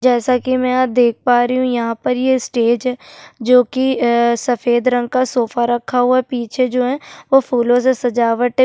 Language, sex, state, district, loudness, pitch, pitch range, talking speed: Hindi, female, Uttarakhand, Tehri Garhwal, -16 LUFS, 250 Hz, 240-255 Hz, 215 wpm